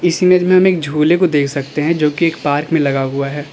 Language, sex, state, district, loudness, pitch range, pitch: Hindi, male, Uttar Pradesh, Lalitpur, -14 LUFS, 145-175 Hz, 150 Hz